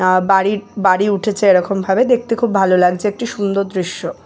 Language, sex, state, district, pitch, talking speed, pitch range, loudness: Bengali, female, West Bengal, Jalpaiguri, 195 Hz, 185 wpm, 185-210 Hz, -15 LUFS